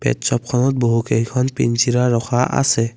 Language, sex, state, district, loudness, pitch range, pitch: Assamese, male, Assam, Kamrup Metropolitan, -18 LUFS, 115-130 Hz, 120 Hz